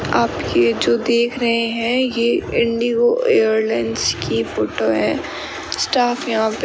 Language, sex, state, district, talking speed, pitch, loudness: Hindi, female, Rajasthan, Bikaner, 145 wpm, 230 Hz, -18 LUFS